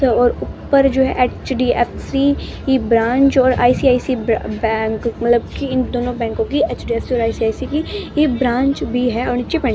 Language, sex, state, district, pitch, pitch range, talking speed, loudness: Hindi, female, Bihar, West Champaran, 245 Hz, 235-265 Hz, 170 wpm, -17 LUFS